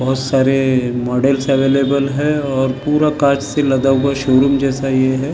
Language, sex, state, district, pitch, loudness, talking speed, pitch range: Hindi, male, Maharashtra, Gondia, 135 Hz, -15 LUFS, 180 wpm, 130-140 Hz